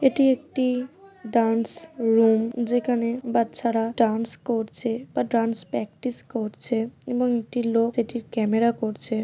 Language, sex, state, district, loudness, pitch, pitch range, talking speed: Bengali, female, West Bengal, Paschim Medinipur, -24 LUFS, 230 Hz, 225-245 Hz, 115 wpm